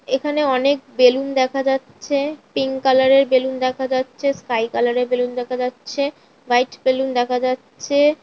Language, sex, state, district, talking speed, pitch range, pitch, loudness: Bengali, female, West Bengal, North 24 Parganas, 145 wpm, 250-275 Hz, 260 Hz, -19 LUFS